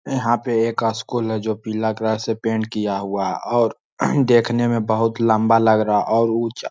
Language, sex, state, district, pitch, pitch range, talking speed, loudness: Hindi, male, Jharkhand, Sahebganj, 115 Hz, 110-115 Hz, 195 wpm, -20 LUFS